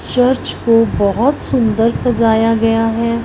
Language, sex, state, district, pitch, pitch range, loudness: Hindi, female, Punjab, Fazilka, 230 Hz, 225-245 Hz, -14 LUFS